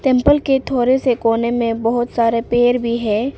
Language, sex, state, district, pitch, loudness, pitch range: Hindi, female, Arunachal Pradesh, Papum Pare, 240 Hz, -16 LUFS, 230-260 Hz